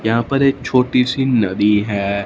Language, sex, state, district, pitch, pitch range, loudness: Hindi, male, Punjab, Fazilka, 120 Hz, 105-130 Hz, -16 LUFS